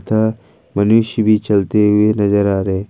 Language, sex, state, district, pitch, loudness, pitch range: Hindi, male, Jharkhand, Ranchi, 105 Hz, -15 LUFS, 100-110 Hz